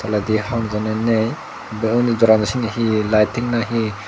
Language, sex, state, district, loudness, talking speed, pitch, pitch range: Chakma, male, Tripura, Dhalai, -18 LUFS, 160 wpm, 110 Hz, 105-115 Hz